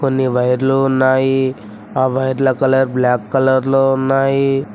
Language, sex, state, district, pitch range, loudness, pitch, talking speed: Telugu, male, Telangana, Mahabubabad, 130-135 Hz, -15 LUFS, 130 Hz, 125 wpm